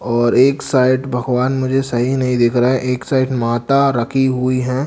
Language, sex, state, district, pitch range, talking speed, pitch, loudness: Hindi, male, Bihar, Katihar, 125-130 Hz, 195 wpm, 130 Hz, -16 LUFS